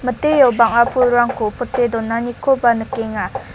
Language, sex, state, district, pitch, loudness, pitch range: Garo, female, Meghalaya, South Garo Hills, 240 Hz, -16 LUFS, 230-255 Hz